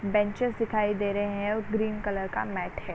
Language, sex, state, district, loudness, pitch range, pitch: Hindi, female, Uttar Pradesh, Varanasi, -29 LUFS, 205-220 Hz, 210 Hz